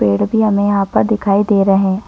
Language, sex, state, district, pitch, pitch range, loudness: Hindi, female, Chhattisgarh, Bilaspur, 200 Hz, 195-210 Hz, -14 LUFS